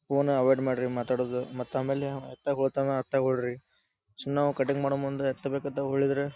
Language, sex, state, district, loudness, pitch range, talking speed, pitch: Kannada, male, Karnataka, Dharwad, -29 LUFS, 130-140 Hz, 190 wpm, 135 Hz